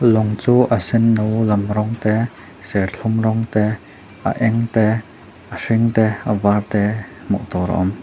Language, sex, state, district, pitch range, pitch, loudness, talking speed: Mizo, male, Mizoram, Aizawl, 100-115 Hz, 110 Hz, -18 LUFS, 170 wpm